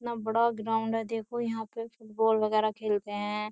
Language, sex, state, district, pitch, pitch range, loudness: Hindi, female, Uttar Pradesh, Jyotiba Phule Nagar, 225 Hz, 215-230 Hz, -30 LUFS